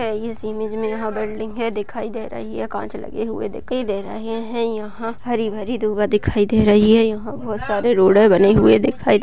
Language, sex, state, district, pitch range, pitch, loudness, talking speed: Hindi, female, Chhattisgarh, Bastar, 210-225 Hz, 220 Hz, -19 LUFS, 215 wpm